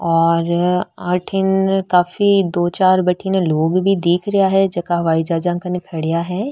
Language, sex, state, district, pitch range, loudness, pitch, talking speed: Marwari, female, Rajasthan, Nagaur, 170-190 Hz, -17 LUFS, 180 Hz, 155 wpm